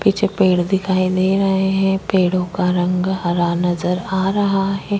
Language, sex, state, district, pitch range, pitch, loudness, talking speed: Hindi, female, Chhattisgarh, Korba, 180-195 Hz, 190 Hz, -18 LUFS, 170 wpm